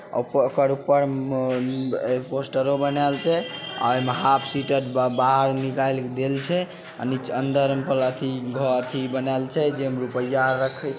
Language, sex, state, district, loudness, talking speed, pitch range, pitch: Maithili, male, Bihar, Samastipur, -23 LUFS, 85 wpm, 130-140 Hz, 135 Hz